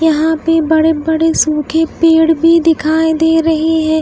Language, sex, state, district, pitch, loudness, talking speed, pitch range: Hindi, female, Bihar, Katihar, 320 Hz, -12 LUFS, 165 wpm, 315-325 Hz